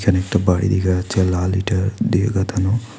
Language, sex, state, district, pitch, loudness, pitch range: Bengali, male, West Bengal, Alipurduar, 95 Hz, -19 LUFS, 95-100 Hz